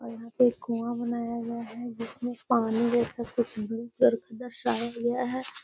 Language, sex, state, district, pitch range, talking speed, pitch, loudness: Hindi, female, Bihar, Gaya, 230-240 Hz, 150 wpm, 235 Hz, -29 LUFS